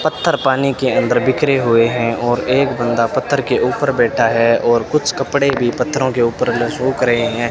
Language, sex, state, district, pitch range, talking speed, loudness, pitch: Hindi, male, Rajasthan, Bikaner, 120-135 Hz, 205 wpm, -15 LUFS, 125 Hz